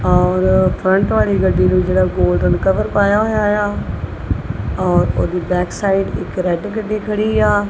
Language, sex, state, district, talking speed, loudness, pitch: Punjabi, female, Punjab, Kapurthala, 155 wpm, -16 LUFS, 180 Hz